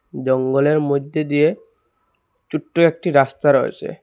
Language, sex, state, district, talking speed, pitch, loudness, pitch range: Bengali, male, Assam, Hailakandi, 120 wpm, 150 Hz, -18 LUFS, 140-160 Hz